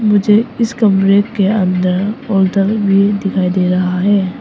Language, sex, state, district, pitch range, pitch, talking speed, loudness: Hindi, female, Arunachal Pradesh, Papum Pare, 185-210 Hz, 200 Hz, 150 wpm, -13 LUFS